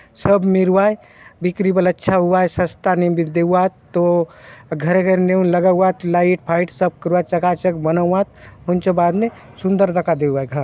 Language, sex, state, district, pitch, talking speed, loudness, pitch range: Halbi, male, Chhattisgarh, Bastar, 180 Hz, 140 wpm, -17 LUFS, 170-185 Hz